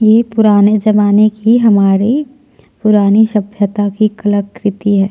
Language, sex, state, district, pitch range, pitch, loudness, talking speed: Hindi, female, Chhattisgarh, Jashpur, 205-220 Hz, 210 Hz, -11 LUFS, 130 wpm